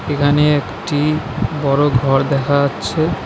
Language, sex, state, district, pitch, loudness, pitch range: Bengali, male, West Bengal, Alipurduar, 140 Hz, -16 LUFS, 135-145 Hz